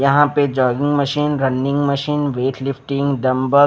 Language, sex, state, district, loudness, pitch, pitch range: Hindi, male, Bihar, Patna, -18 LUFS, 140 Hz, 135-145 Hz